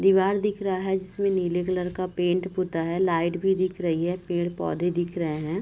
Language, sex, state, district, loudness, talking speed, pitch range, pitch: Hindi, female, Bihar, Gopalganj, -26 LUFS, 255 wpm, 175-190 Hz, 180 Hz